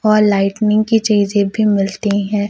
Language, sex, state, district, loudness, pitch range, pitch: Hindi, male, Madhya Pradesh, Umaria, -15 LUFS, 200-215 Hz, 205 Hz